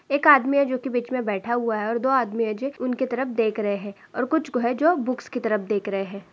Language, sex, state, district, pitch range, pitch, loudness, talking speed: Hindi, female, Maharashtra, Aurangabad, 215-265 Hz, 245 Hz, -23 LUFS, 295 wpm